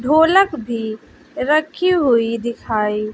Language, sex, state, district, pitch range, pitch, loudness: Hindi, female, Bihar, West Champaran, 225-315 Hz, 235 Hz, -17 LUFS